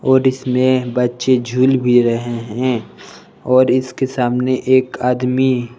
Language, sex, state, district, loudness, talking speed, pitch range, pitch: Hindi, male, Jharkhand, Palamu, -16 LUFS, 125 wpm, 125-130 Hz, 125 Hz